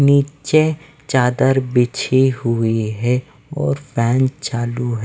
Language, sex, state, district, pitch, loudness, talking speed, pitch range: Hindi, male, Punjab, Fazilka, 130 Hz, -18 LUFS, 95 wpm, 120-140 Hz